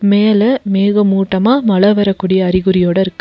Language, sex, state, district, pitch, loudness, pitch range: Tamil, female, Tamil Nadu, Nilgiris, 195 Hz, -12 LUFS, 190-210 Hz